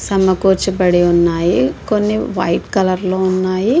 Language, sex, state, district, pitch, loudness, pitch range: Telugu, female, Andhra Pradesh, Visakhapatnam, 185 Hz, -15 LUFS, 180-195 Hz